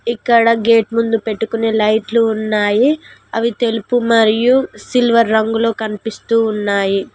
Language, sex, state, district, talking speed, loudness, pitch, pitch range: Telugu, female, Telangana, Mahabubabad, 110 wpm, -15 LUFS, 225 Hz, 220-235 Hz